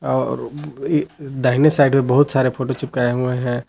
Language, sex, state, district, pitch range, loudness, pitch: Hindi, male, Jharkhand, Palamu, 125-140 Hz, -18 LUFS, 130 Hz